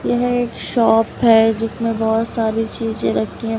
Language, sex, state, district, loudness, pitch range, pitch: Hindi, female, Uttar Pradesh, Lalitpur, -17 LUFS, 225-230 Hz, 225 Hz